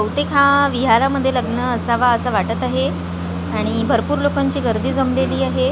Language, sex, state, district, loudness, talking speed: Marathi, female, Maharashtra, Gondia, -18 LUFS, 145 wpm